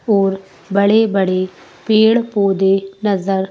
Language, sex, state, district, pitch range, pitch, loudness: Hindi, female, Madhya Pradesh, Bhopal, 190-210 Hz, 195 Hz, -15 LUFS